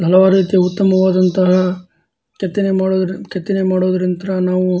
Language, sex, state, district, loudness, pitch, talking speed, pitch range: Kannada, male, Karnataka, Dharwad, -15 LUFS, 185 Hz, 110 wpm, 180-190 Hz